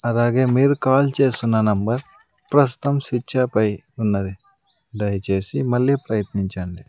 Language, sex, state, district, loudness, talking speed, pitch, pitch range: Telugu, male, Andhra Pradesh, Sri Satya Sai, -20 LUFS, 115 wpm, 120 Hz, 105-135 Hz